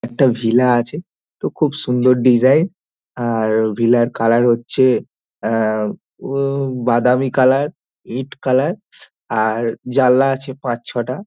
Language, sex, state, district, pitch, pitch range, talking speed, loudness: Bengali, male, West Bengal, Dakshin Dinajpur, 125 Hz, 115-135 Hz, 135 wpm, -17 LUFS